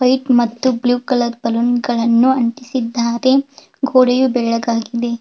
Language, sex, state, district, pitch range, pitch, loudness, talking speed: Kannada, female, Karnataka, Belgaum, 235-255 Hz, 245 Hz, -16 LUFS, 90 wpm